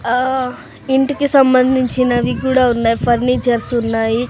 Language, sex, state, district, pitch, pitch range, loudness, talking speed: Telugu, male, Andhra Pradesh, Sri Satya Sai, 250 Hz, 240-260 Hz, -15 LUFS, 100 wpm